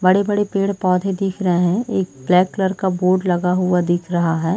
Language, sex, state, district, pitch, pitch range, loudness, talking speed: Hindi, female, Chhattisgarh, Sarguja, 185 Hz, 180-195 Hz, -18 LUFS, 210 wpm